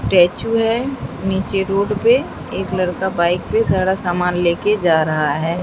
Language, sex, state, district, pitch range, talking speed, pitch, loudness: Hindi, female, Bihar, Katihar, 175-210 Hz, 170 wpm, 185 Hz, -18 LUFS